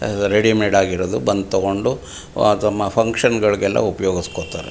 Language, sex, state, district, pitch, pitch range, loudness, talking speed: Kannada, male, Karnataka, Mysore, 100 Hz, 95-105 Hz, -18 LUFS, 125 wpm